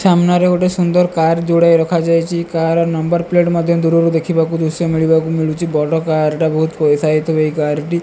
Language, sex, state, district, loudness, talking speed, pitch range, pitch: Odia, female, Odisha, Malkangiri, -14 LUFS, 180 wpm, 160-170 Hz, 165 Hz